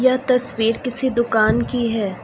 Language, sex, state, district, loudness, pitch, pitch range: Hindi, female, Uttar Pradesh, Lucknow, -17 LUFS, 235 Hz, 225-255 Hz